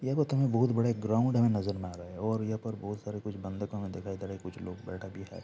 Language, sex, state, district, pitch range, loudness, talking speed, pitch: Hindi, male, Bihar, Saharsa, 95-115 Hz, -33 LUFS, 330 wpm, 105 Hz